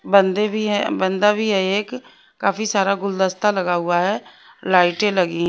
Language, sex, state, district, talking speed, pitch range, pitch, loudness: Hindi, female, Haryana, Rohtak, 165 wpm, 185-210 Hz, 195 Hz, -19 LUFS